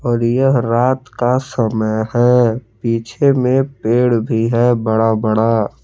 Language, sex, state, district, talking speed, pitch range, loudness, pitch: Hindi, male, Jharkhand, Palamu, 135 wpm, 115-125 Hz, -15 LUFS, 120 Hz